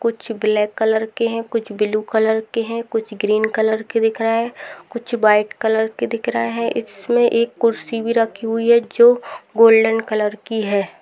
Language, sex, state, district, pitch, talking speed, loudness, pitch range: Hindi, female, Rajasthan, Churu, 225 Hz, 195 wpm, -18 LUFS, 215-230 Hz